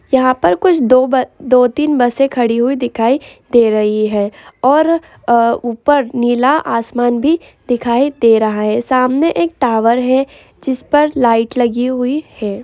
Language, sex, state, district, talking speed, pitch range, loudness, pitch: Hindi, female, Bihar, Araria, 155 wpm, 235-275 Hz, -14 LUFS, 250 Hz